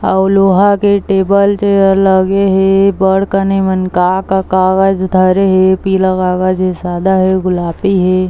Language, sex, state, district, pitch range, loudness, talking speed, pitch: Chhattisgarhi, female, Chhattisgarh, Bilaspur, 185-195 Hz, -11 LUFS, 150 wpm, 190 Hz